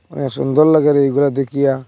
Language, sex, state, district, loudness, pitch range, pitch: Bengali, male, Assam, Hailakandi, -15 LUFS, 135-150 Hz, 140 Hz